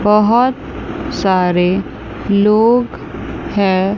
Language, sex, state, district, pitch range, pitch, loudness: Hindi, female, Chandigarh, Chandigarh, 190-225 Hz, 205 Hz, -14 LUFS